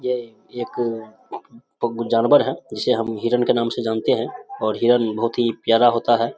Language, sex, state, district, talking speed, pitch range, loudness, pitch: Hindi, male, Bihar, Samastipur, 190 wpm, 115-120 Hz, -20 LUFS, 120 Hz